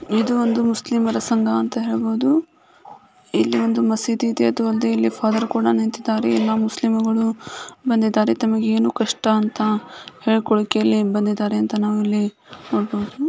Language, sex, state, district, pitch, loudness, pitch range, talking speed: Kannada, female, Karnataka, Chamarajanagar, 220 Hz, -20 LUFS, 210-230 Hz, 135 wpm